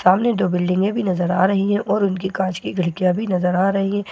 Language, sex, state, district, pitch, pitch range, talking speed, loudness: Hindi, female, Bihar, Katihar, 190 Hz, 180-200 Hz, 260 wpm, -19 LUFS